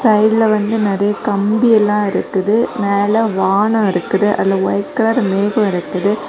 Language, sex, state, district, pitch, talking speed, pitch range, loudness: Tamil, female, Tamil Nadu, Kanyakumari, 205 Hz, 125 wpm, 195-220 Hz, -15 LUFS